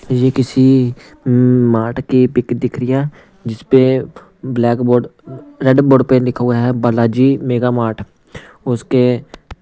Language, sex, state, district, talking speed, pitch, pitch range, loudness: Hindi, male, Punjab, Pathankot, 135 wpm, 125 Hz, 120-130 Hz, -14 LUFS